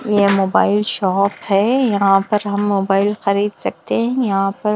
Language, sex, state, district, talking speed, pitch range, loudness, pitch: Hindi, female, Bihar, West Champaran, 175 wpm, 195-210 Hz, -17 LUFS, 205 Hz